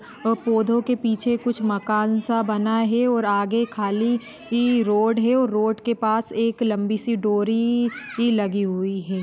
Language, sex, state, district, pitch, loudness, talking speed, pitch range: Hindi, female, Maharashtra, Nagpur, 225 Hz, -22 LUFS, 175 wpm, 215-235 Hz